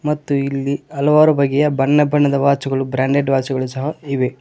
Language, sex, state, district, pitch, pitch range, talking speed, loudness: Kannada, male, Karnataka, Koppal, 140 Hz, 135-150 Hz, 165 wpm, -17 LUFS